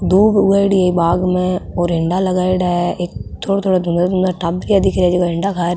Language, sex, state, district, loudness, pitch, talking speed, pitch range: Rajasthani, female, Rajasthan, Nagaur, -16 LUFS, 180 Hz, 220 wpm, 175-190 Hz